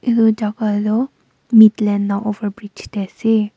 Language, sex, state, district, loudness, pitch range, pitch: Nagamese, female, Nagaland, Kohima, -17 LUFS, 205-220 Hz, 210 Hz